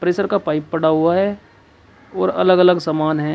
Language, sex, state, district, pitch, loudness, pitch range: Hindi, male, Uttar Pradesh, Shamli, 165 Hz, -17 LUFS, 155-185 Hz